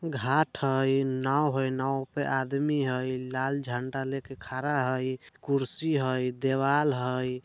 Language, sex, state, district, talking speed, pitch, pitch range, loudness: Bajjika, male, Bihar, Vaishali, 135 wpm, 135 Hz, 130-140 Hz, -29 LUFS